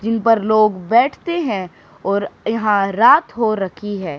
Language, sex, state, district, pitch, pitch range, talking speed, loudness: Hindi, male, Haryana, Charkhi Dadri, 215 Hz, 200-225 Hz, 155 wpm, -17 LUFS